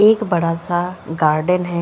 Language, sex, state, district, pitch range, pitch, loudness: Hindi, female, Uttarakhand, Uttarkashi, 165-180 Hz, 175 Hz, -18 LUFS